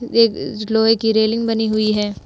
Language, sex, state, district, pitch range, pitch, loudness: Hindi, female, Uttar Pradesh, Budaun, 215-225 Hz, 220 Hz, -17 LUFS